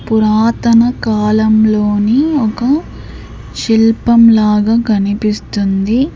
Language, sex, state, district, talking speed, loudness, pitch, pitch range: Telugu, female, Andhra Pradesh, Sri Satya Sai, 60 wpm, -12 LUFS, 220 Hz, 210-235 Hz